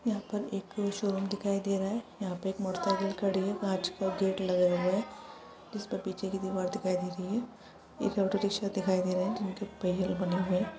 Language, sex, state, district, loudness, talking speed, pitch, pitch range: Hindi, female, Chhattisgarh, Raigarh, -32 LUFS, 235 wpm, 195 Hz, 185-200 Hz